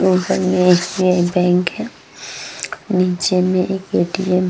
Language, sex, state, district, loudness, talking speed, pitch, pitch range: Hindi, female, Bihar, Vaishali, -17 LUFS, 145 wpm, 185 Hz, 180-185 Hz